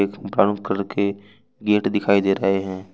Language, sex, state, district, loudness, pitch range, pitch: Hindi, male, Jharkhand, Ranchi, -21 LUFS, 95-100 Hz, 100 Hz